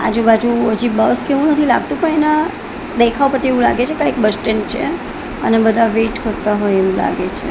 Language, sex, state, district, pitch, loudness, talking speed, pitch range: Gujarati, female, Gujarat, Gandhinagar, 235 Hz, -15 LUFS, 205 wpm, 220-285 Hz